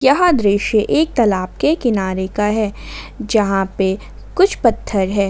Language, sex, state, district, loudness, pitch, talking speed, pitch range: Hindi, female, Jharkhand, Ranchi, -17 LUFS, 210 Hz, 145 wpm, 195-240 Hz